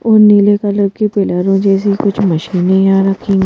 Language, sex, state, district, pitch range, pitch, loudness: Hindi, female, Madhya Pradesh, Bhopal, 195-205 Hz, 195 Hz, -12 LUFS